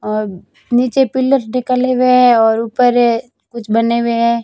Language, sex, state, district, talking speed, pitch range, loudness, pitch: Hindi, female, Rajasthan, Barmer, 160 wpm, 230-255 Hz, -14 LUFS, 240 Hz